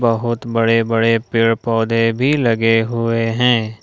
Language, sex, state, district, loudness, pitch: Hindi, male, Jharkhand, Ranchi, -16 LUFS, 115 Hz